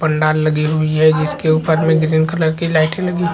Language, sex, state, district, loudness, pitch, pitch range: Chhattisgarhi, male, Chhattisgarh, Jashpur, -15 LUFS, 155 Hz, 155-160 Hz